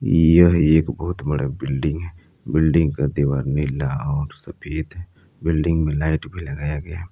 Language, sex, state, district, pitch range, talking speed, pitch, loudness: Hindi, male, Jharkhand, Palamu, 70-85 Hz, 170 wpm, 80 Hz, -20 LUFS